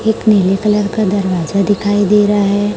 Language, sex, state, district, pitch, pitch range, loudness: Hindi, male, Chhattisgarh, Raipur, 205 Hz, 200-210 Hz, -13 LUFS